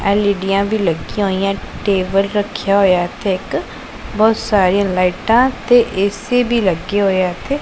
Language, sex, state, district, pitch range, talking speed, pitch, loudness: Punjabi, male, Punjab, Pathankot, 190-215 Hz, 150 wpm, 200 Hz, -16 LUFS